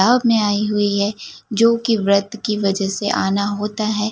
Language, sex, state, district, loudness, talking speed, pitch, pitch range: Hindi, female, Gujarat, Gandhinagar, -18 LUFS, 190 wpm, 210 Hz, 200-220 Hz